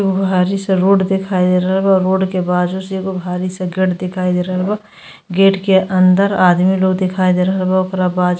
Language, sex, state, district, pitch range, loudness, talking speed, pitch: Bhojpuri, female, Uttar Pradesh, Gorakhpur, 180-190 Hz, -15 LUFS, 230 wpm, 185 Hz